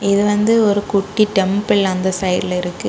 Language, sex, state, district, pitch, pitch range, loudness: Tamil, female, Tamil Nadu, Kanyakumari, 200 Hz, 190-205 Hz, -16 LUFS